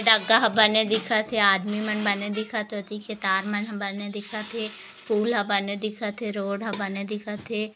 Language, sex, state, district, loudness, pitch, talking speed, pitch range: Hindi, female, Chhattisgarh, Korba, -25 LUFS, 210 Hz, 210 wpm, 205-220 Hz